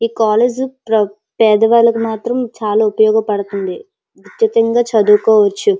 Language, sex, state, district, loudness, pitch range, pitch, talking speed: Telugu, female, Andhra Pradesh, Srikakulam, -14 LUFS, 215-240 Hz, 220 Hz, 85 wpm